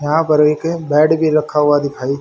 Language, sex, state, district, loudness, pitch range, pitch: Hindi, male, Haryana, Rohtak, -14 LUFS, 145-160 Hz, 150 Hz